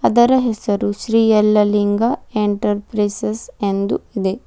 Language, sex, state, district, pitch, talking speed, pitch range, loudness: Kannada, female, Karnataka, Bidar, 210 Hz, 95 wpm, 205-225 Hz, -17 LUFS